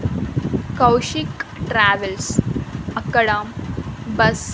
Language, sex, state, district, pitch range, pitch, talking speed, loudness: Telugu, female, Andhra Pradesh, Annamaya, 160-215 Hz, 200 Hz, 65 wpm, -20 LUFS